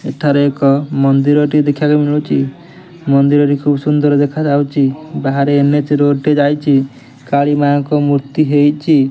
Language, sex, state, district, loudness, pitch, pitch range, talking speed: Odia, male, Odisha, Nuapada, -13 LUFS, 145 Hz, 140-150 Hz, 125 wpm